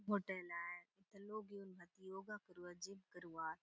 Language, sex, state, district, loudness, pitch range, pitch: Halbi, female, Chhattisgarh, Bastar, -50 LUFS, 175-200 Hz, 190 Hz